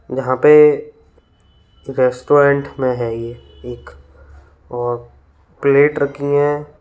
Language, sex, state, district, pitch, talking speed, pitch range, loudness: Hindi, male, Uttar Pradesh, Lalitpur, 130 Hz, 95 wpm, 115-145 Hz, -15 LUFS